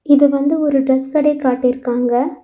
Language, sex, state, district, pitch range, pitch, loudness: Tamil, female, Tamil Nadu, Nilgiris, 255-290 Hz, 275 Hz, -15 LUFS